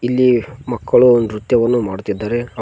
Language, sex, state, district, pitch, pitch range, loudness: Kannada, male, Karnataka, Koppal, 120 Hz, 110-125 Hz, -15 LUFS